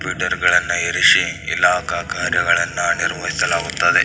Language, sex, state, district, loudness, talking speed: Kannada, male, Karnataka, Belgaum, -17 LUFS, 105 wpm